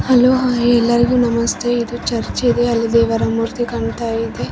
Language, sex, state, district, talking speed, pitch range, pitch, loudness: Kannada, female, Karnataka, Raichur, 105 wpm, 230-240 Hz, 235 Hz, -16 LUFS